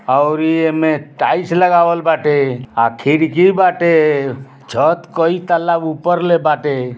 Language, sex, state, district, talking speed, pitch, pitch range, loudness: Bhojpuri, male, Uttar Pradesh, Ghazipur, 120 wpm, 160 Hz, 140-170 Hz, -14 LUFS